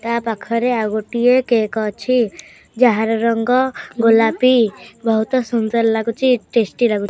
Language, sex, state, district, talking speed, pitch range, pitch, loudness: Odia, male, Odisha, Khordha, 120 wpm, 220-245 Hz, 230 Hz, -17 LUFS